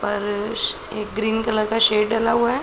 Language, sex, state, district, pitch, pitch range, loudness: Hindi, male, Bihar, Araria, 220 Hz, 210-225 Hz, -21 LUFS